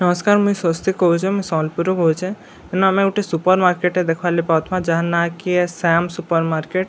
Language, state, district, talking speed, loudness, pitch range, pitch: Sambalpuri, Odisha, Sambalpur, 215 wpm, -18 LUFS, 170-185 Hz, 180 Hz